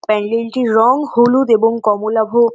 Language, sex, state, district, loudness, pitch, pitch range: Bengali, female, West Bengal, North 24 Parganas, -14 LUFS, 230 Hz, 220-240 Hz